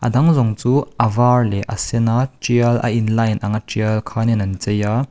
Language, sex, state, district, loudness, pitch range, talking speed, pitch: Mizo, male, Mizoram, Aizawl, -18 LUFS, 110-125 Hz, 210 wpm, 115 Hz